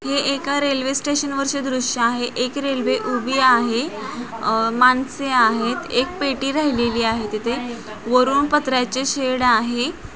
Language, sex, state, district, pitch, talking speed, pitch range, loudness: Marathi, female, Maharashtra, Solapur, 255 Hz, 135 wpm, 240-275 Hz, -19 LUFS